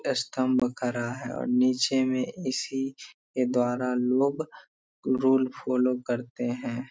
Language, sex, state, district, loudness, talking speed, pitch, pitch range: Hindi, male, Bihar, Darbhanga, -27 LUFS, 120 wpm, 125 Hz, 125-130 Hz